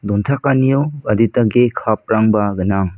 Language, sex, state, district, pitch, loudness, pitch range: Garo, male, Meghalaya, South Garo Hills, 110 Hz, -16 LUFS, 105-130 Hz